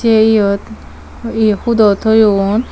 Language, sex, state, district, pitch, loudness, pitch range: Chakma, female, Tripura, Dhalai, 220 Hz, -12 LUFS, 205-225 Hz